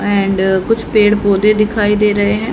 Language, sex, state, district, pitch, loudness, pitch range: Hindi, female, Haryana, Charkhi Dadri, 210 Hz, -13 LUFS, 200-215 Hz